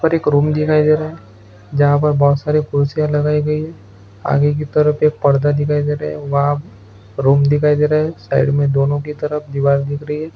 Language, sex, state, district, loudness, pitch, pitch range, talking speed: Hindi, male, Bihar, Araria, -16 LUFS, 145 Hz, 140-150 Hz, 235 wpm